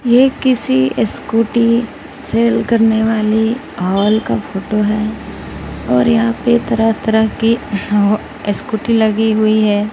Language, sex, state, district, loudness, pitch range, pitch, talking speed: Hindi, female, Bihar, West Champaran, -14 LUFS, 205-230 Hz, 220 Hz, 125 wpm